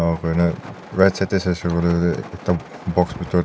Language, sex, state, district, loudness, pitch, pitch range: Nagamese, male, Nagaland, Dimapur, -21 LUFS, 85 Hz, 85-90 Hz